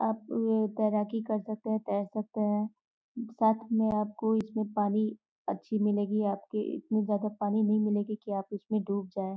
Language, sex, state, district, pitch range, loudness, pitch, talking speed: Hindi, female, Uttar Pradesh, Gorakhpur, 210-220 Hz, -31 LUFS, 215 Hz, 175 wpm